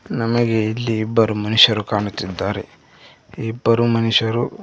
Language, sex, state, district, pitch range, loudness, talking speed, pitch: Kannada, male, Karnataka, Koppal, 105-115 Hz, -18 LUFS, 105 wpm, 110 Hz